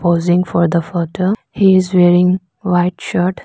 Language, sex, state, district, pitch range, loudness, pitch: English, female, Arunachal Pradesh, Lower Dibang Valley, 175-185 Hz, -14 LUFS, 180 Hz